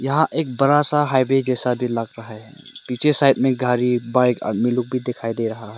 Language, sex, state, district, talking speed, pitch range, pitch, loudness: Hindi, male, Arunachal Pradesh, Lower Dibang Valley, 230 wpm, 120-135 Hz, 125 Hz, -19 LUFS